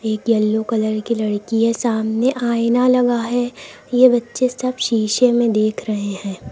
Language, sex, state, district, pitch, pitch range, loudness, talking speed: Hindi, female, Uttar Pradesh, Lucknow, 230 Hz, 215-245 Hz, -18 LUFS, 165 wpm